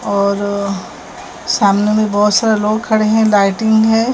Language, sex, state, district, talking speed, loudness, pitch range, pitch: Hindi, female, Maharashtra, Mumbai Suburban, 145 wpm, -13 LUFS, 200-220 Hz, 210 Hz